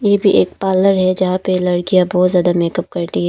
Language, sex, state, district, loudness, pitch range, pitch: Hindi, female, Arunachal Pradesh, Papum Pare, -15 LUFS, 175-185 Hz, 185 Hz